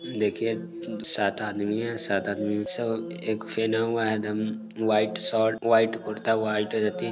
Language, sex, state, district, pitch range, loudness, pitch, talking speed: Hindi, male, Bihar, Sitamarhi, 105-115 Hz, -25 LUFS, 110 Hz, 135 wpm